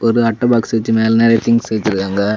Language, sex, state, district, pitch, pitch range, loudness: Tamil, male, Tamil Nadu, Kanyakumari, 115 Hz, 110-115 Hz, -14 LUFS